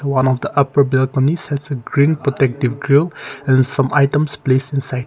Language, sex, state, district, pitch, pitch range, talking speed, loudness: English, male, Nagaland, Kohima, 140 Hz, 130-145 Hz, 165 wpm, -17 LUFS